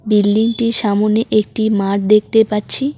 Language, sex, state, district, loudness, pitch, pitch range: Bengali, female, West Bengal, Cooch Behar, -15 LUFS, 215 Hz, 210-225 Hz